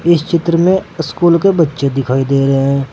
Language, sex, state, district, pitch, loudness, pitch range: Hindi, male, Uttar Pradesh, Saharanpur, 160 Hz, -13 LUFS, 135-170 Hz